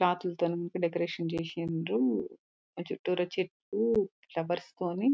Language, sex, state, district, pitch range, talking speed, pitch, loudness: Telugu, female, Telangana, Nalgonda, 170-185 Hz, 105 wpm, 180 Hz, -32 LUFS